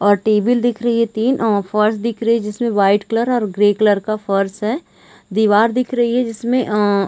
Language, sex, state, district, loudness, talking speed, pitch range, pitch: Hindi, female, Chhattisgarh, Raigarh, -17 LUFS, 220 wpm, 205-235 Hz, 220 Hz